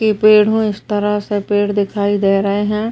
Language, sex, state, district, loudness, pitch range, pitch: Hindi, female, Uttar Pradesh, Ghazipur, -15 LUFS, 205-210 Hz, 205 Hz